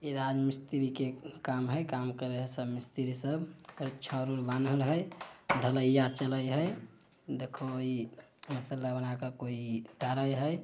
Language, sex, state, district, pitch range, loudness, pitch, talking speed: Maithili, male, Bihar, Samastipur, 125-140 Hz, -34 LUFS, 130 Hz, 145 wpm